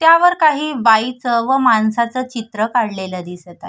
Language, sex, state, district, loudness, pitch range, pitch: Marathi, female, Maharashtra, Sindhudurg, -16 LUFS, 215-270 Hz, 235 Hz